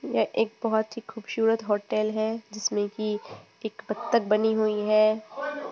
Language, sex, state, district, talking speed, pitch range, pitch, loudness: Hindi, female, Bihar, Purnia, 145 wpm, 215-225 Hz, 220 Hz, -26 LUFS